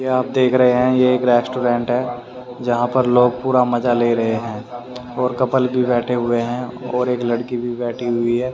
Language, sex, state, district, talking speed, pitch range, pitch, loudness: Hindi, male, Haryana, Rohtak, 210 wpm, 120-125 Hz, 125 Hz, -18 LUFS